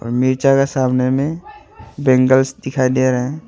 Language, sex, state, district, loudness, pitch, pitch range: Hindi, male, Arunachal Pradesh, Longding, -16 LUFS, 130 Hz, 130-135 Hz